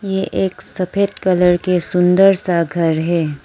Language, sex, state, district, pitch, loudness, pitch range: Hindi, female, Arunachal Pradesh, Lower Dibang Valley, 180 Hz, -16 LUFS, 170-190 Hz